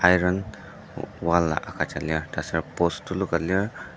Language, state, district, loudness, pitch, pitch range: Ao, Nagaland, Dimapur, -25 LUFS, 85 Hz, 80-90 Hz